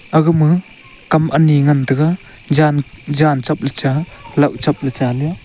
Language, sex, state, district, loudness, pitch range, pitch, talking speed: Wancho, male, Arunachal Pradesh, Longding, -15 LUFS, 135-155 Hz, 150 Hz, 155 wpm